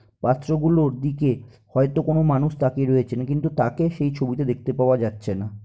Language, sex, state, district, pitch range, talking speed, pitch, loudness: Bengali, male, West Bengal, North 24 Parganas, 125-150 Hz, 170 wpm, 130 Hz, -22 LUFS